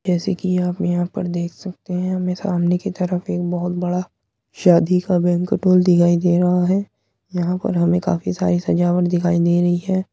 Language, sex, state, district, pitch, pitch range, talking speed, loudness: Hindi, male, Uttar Pradesh, Muzaffarnagar, 180 Hz, 175-180 Hz, 190 wpm, -19 LUFS